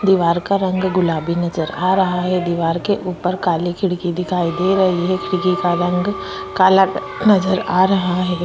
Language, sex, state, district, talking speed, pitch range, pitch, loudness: Hindi, female, Chhattisgarh, Korba, 180 wpm, 175-190 Hz, 185 Hz, -17 LUFS